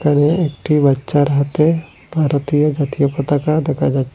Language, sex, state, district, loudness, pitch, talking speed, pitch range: Bengali, male, Assam, Hailakandi, -16 LUFS, 145 Hz, 130 wpm, 140-155 Hz